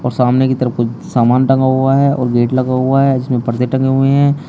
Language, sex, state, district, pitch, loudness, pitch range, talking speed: Hindi, male, Uttar Pradesh, Shamli, 130 Hz, -13 LUFS, 125-135 Hz, 255 wpm